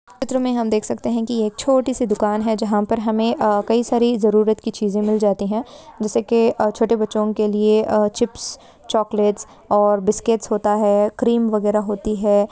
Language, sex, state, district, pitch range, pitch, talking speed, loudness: Hindi, female, Goa, North and South Goa, 210-230 Hz, 215 Hz, 185 wpm, -19 LUFS